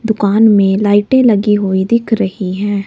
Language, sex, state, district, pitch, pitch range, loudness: Hindi, male, Himachal Pradesh, Shimla, 205 Hz, 195-220 Hz, -12 LUFS